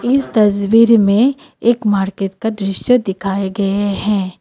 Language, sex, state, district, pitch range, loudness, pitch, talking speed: Hindi, female, Assam, Kamrup Metropolitan, 195-230 Hz, -15 LUFS, 205 Hz, 135 wpm